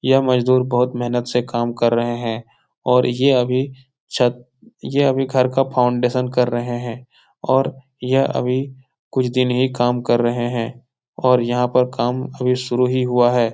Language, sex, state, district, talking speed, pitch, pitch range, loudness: Hindi, male, Bihar, Jahanabad, 175 wpm, 125 Hz, 120-130 Hz, -19 LUFS